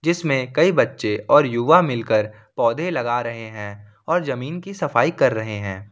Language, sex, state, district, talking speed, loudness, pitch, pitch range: Hindi, male, Jharkhand, Ranchi, 175 wpm, -20 LUFS, 120 Hz, 105-150 Hz